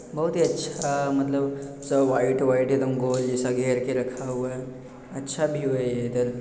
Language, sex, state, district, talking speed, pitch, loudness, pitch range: Hindi, male, Bihar, Jamui, 195 wpm, 130 Hz, -25 LUFS, 125-140 Hz